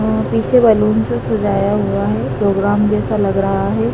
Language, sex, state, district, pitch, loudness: Hindi, male, Madhya Pradesh, Dhar, 120 Hz, -15 LUFS